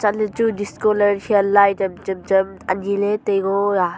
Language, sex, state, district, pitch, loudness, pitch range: Wancho, female, Arunachal Pradesh, Longding, 200 Hz, -19 LUFS, 195-205 Hz